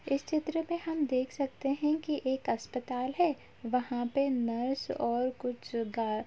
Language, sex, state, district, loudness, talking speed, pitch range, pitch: Hindi, female, Uttar Pradesh, Jalaun, -33 LUFS, 170 wpm, 245-295 Hz, 260 Hz